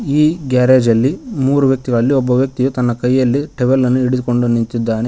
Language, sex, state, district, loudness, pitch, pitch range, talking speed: Kannada, male, Karnataka, Koppal, -15 LUFS, 130 Hz, 120-135 Hz, 165 wpm